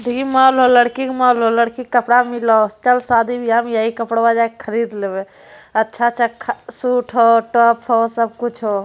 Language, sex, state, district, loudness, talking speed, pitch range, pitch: Hindi, female, Bihar, Jamui, -16 LUFS, 205 wpm, 230-245 Hz, 235 Hz